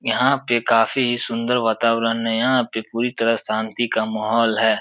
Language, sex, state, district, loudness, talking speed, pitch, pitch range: Hindi, male, Uttar Pradesh, Etah, -20 LUFS, 175 wpm, 115 Hz, 110-120 Hz